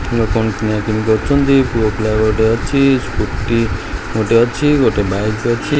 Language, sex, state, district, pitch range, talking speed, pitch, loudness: Odia, male, Odisha, Khordha, 110-120 Hz, 145 wpm, 110 Hz, -15 LUFS